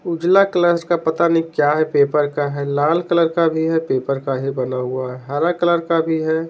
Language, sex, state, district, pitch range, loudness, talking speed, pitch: Hindi, male, Bihar, Patna, 140-170 Hz, -18 LUFS, 240 wpm, 160 Hz